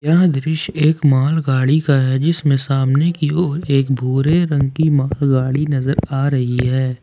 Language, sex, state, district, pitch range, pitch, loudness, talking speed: Hindi, male, Jharkhand, Ranchi, 135-155 Hz, 140 Hz, -16 LUFS, 160 wpm